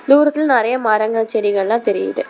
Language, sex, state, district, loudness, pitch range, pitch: Tamil, female, Tamil Nadu, Namakkal, -16 LUFS, 215-280 Hz, 230 Hz